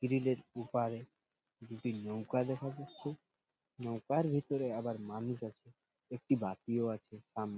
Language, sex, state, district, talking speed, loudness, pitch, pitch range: Bengali, male, West Bengal, Purulia, 120 wpm, -38 LUFS, 120 Hz, 115-130 Hz